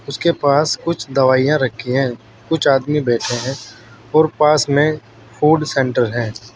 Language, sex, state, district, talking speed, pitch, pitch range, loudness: Hindi, male, Uttar Pradesh, Saharanpur, 145 wpm, 135 Hz, 120-150 Hz, -17 LUFS